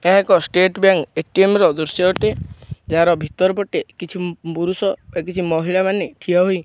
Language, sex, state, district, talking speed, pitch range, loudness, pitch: Odia, male, Odisha, Khordha, 170 wpm, 170-190 Hz, -18 LUFS, 180 Hz